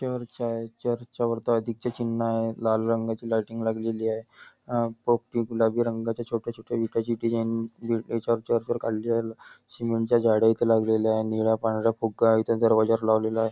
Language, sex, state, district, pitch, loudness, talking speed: Marathi, male, Maharashtra, Nagpur, 115 Hz, -26 LUFS, 170 wpm